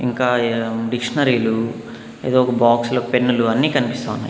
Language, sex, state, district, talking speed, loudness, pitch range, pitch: Telugu, male, Andhra Pradesh, Annamaya, 165 wpm, -18 LUFS, 115-125 Hz, 120 Hz